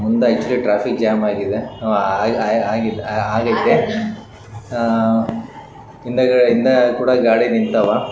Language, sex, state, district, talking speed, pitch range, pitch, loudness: Kannada, male, Karnataka, Raichur, 75 wpm, 110-125 Hz, 115 Hz, -17 LUFS